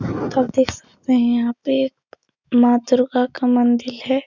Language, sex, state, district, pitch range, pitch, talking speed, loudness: Hindi, female, Bihar, Supaul, 240-260 Hz, 250 Hz, 185 wpm, -18 LUFS